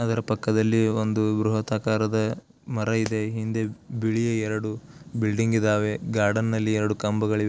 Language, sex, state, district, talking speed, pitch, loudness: Kannada, male, Karnataka, Belgaum, 130 wpm, 110 Hz, -25 LUFS